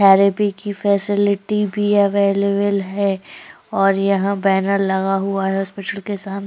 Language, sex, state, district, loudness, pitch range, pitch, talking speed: Hindi, female, Maharashtra, Chandrapur, -18 LUFS, 195-200 Hz, 200 Hz, 160 wpm